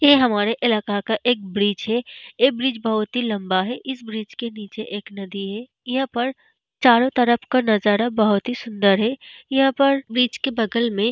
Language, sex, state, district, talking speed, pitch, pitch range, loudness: Hindi, female, Bihar, Vaishali, 200 wpm, 230 Hz, 210-250 Hz, -21 LUFS